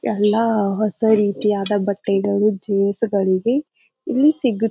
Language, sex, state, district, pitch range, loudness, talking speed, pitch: Kannada, female, Karnataka, Bijapur, 200-225 Hz, -19 LUFS, 115 wpm, 210 Hz